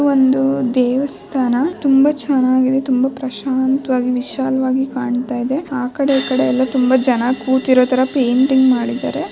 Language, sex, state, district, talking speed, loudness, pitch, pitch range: Kannada, female, Karnataka, Bijapur, 115 wpm, -16 LUFS, 260 Hz, 255-270 Hz